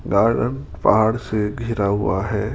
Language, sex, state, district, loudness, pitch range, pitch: Hindi, male, Rajasthan, Jaipur, -20 LUFS, 105-115 Hz, 105 Hz